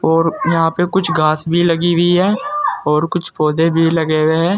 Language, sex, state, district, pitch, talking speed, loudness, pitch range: Hindi, male, Uttar Pradesh, Saharanpur, 165 Hz, 210 wpm, -15 LUFS, 160-180 Hz